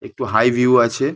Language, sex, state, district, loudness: Bengali, male, West Bengal, Paschim Medinipur, -16 LUFS